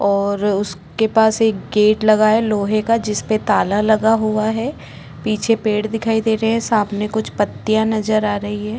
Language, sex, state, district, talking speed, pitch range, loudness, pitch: Hindi, female, Maharashtra, Chandrapur, 200 wpm, 210-220 Hz, -17 LUFS, 215 Hz